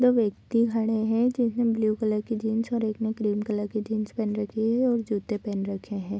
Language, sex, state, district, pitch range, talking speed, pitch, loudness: Hindi, female, Bihar, Bhagalpur, 210-230 Hz, 230 wpm, 220 Hz, -27 LUFS